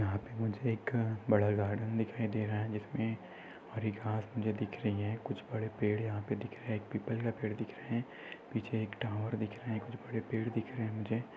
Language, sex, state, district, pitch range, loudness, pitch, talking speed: Hindi, male, Maharashtra, Aurangabad, 105-115 Hz, -37 LUFS, 110 Hz, 235 wpm